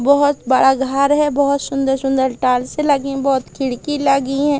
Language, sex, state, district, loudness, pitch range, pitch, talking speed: Hindi, female, Madhya Pradesh, Katni, -16 LUFS, 265-285 Hz, 275 Hz, 180 wpm